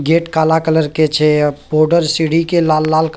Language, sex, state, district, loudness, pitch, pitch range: Maithili, male, Bihar, Purnia, -14 LUFS, 160 Hz, 155-165 Hz